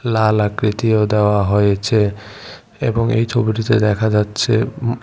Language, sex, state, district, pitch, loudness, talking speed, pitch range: Bengali, male, Tripura, West Tripura, 110 Hz, -16 LUFS, 105 wpm, 105-115 Hz